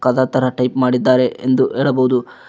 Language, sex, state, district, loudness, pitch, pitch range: Kannada, male, Karnataka, Koppal, -16 LUFS, 130 Hz, 125-130 Hz